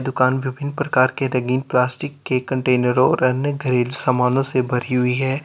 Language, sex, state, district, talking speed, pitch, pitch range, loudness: Hindi, male, Uttar Pradesh, Lalitpur, 175 wpm, 130 Hz, 125-135 Hz, -19 LUFS